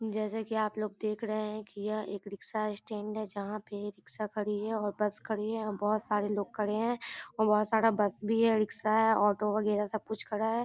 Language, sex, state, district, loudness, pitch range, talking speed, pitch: Maithili, female, Bihar, Darbhanga, -32 LUFS, 210-220 Hz, 240 wpm, 215 Hz